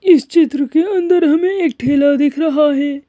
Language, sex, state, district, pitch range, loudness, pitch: Hindi, female, Madhya Pradesh, Bhopal, 285-335 Hz, -14 LUFS, 305 Hz